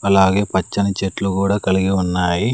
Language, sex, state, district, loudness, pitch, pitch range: Telugu, male, Andhra Pradesh, Sri Satya Sai, -18 LUFS, 95 Hz, 95-100 Hz